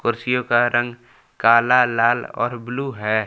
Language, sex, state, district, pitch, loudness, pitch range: Hindi, male, Jharkhand, Palamu, 120 Hz, -19 LUFS, 115-125 Hz